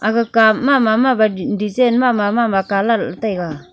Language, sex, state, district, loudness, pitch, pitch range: Wancho, female, Arunachal Pradesh, Longding, -16 LUFS, 220 Hz, 200-235 Hz